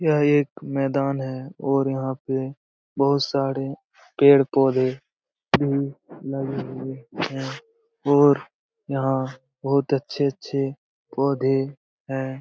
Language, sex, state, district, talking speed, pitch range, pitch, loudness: Hindi, male, Bihar, Jamui, 100 wpm, 135-140 Hz, 135 Hz, -23 LUFS